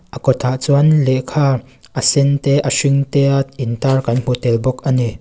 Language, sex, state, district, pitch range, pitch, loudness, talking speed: Mizo, female, Mizoram, Aizawl, 125-140 Hz, 135 Hz, -16 LUFS, 220 wpm